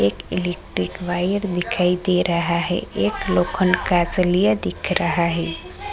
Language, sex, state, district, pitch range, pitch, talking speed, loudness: Hindi, female, Uttarakhand, Tehri Garhwal, 170-185 Hz, 175 Hz, 140 wpm, -21 LUFS